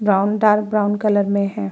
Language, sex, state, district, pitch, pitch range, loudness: Hindi, female, Uttar Pradesh, Muzaffarnagar, 205 Hz, 200-210 Hz, -18 LUFS